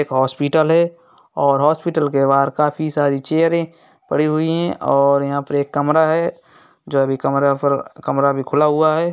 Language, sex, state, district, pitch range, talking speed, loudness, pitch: Hindi, male, Uttar Pradesh, Hamirpur, 140-160 Hz, 185 wpm, -17 LUFS, 150 Hz